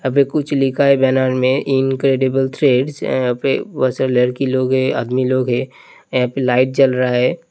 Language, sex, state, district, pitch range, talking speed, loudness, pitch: Hindi, male, Uttar Pradesh, Hamirpur, 130-135 Hz, 185 wpm, -16 LUFS, 130 Hz